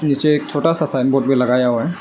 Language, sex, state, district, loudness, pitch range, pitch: Hindi, male, Arunachal Pradesh, Lower Dibang Valley, -17 LUFS, 130-150 Hz, 140 Hz